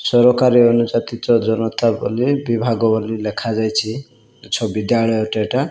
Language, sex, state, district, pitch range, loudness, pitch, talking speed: Odia, male, Odisha, Malkangiri, 110-120 Hz, -17 LUFS, 115 Hz, 135 wpm